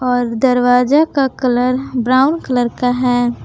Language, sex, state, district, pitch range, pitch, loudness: Hindi, female, Jharkhand, Palamu, 245-265 Hz, 250 Hz, -14 LUFS